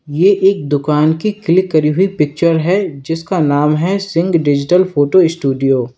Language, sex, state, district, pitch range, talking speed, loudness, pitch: Hindi, male, Uttar Pradesh, Lalitpur, 145-185 Hz, 170 wpm, -14 LUFS, 165 Hz